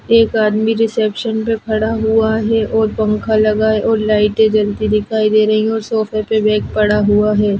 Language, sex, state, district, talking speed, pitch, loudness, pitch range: Hindi, female, Chhattisgarh, Jashpur, 195 wpm, 215 Hz, -14 LUFS, 215-220 Hz